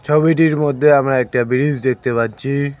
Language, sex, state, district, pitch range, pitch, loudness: Bengali, male, West Bengal, Cooch Behar, 125-150 Hz, 140 Hz, -16 LUFS